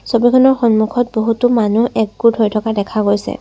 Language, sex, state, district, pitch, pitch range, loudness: Assamese, female, Assam, Sonitpur, 225 Hz, 215-240 Hz, -14 LUFS